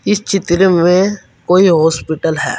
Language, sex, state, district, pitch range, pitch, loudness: Hindi, male, Uttar Pradesh, Saharanpur, 165-195 Hz, 180 Hz, -12 LUFS